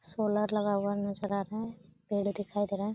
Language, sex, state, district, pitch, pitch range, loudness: Hindi, female, Bihar, Saran, 205 Hz, 200-210 Hz, -32 LUFS